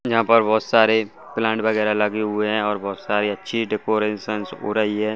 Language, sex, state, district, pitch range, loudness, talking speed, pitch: Hindi, male, Chhattisgarh, Bastar, 105-110 Hz, -21 LUFS, 200 wpm, 110 Hz